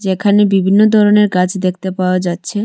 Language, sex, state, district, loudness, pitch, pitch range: Bengali, female, Tripura, West Tripura, -13 LUFS, 190 Hz, 185-205 Hz